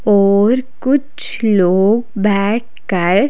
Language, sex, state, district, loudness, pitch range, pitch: Hindi, female, Chhattisgarh, Raipur, -14 LUFS, 200-245 Hz, 210 Hz